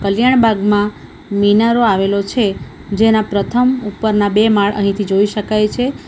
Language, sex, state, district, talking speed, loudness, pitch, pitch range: Gujarati, female, Gujarat, Valsad, 140 wpm, -14 LUFS, 210 Hz, 200-225 Hz